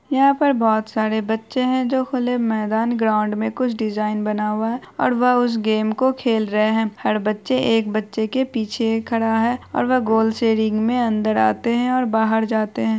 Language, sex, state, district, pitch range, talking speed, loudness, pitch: Hindi, female, Bihar, Araria, 215-245 Hz, 200 wpm, -20 LUFS, 225 Hz